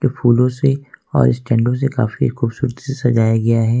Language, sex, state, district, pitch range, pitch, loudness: Hindi, male, Jharkhand, Ranchi, 115-135 Hz, 120 Hz, -17 LUFS